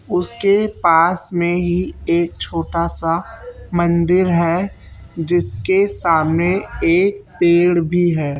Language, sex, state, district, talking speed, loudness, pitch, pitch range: Hindi, male, Chhattisgarh, Raipur, 105 wpm, -17 LUFS, 170 Hz, 165-180 Hz